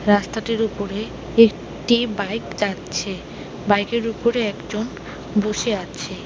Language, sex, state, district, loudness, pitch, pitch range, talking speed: Bengali, female, West Bengal, Alipurduar, -22 LUFS, 210 Hz, 200-230 Hz, 105 wpm